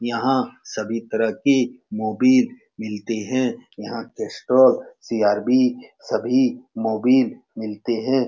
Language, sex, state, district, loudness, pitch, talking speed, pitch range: Hindi, male, Bihar, Saran, -21 LUFS, 120 Hz, 110 wpm, 110-130 Hz